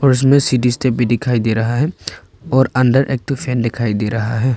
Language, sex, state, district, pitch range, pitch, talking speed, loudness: Hindi, male, Arunachal Pradesh, Papum Pare, 115-130 Hz, 125 Hz, 225 wpm, -16 LUFS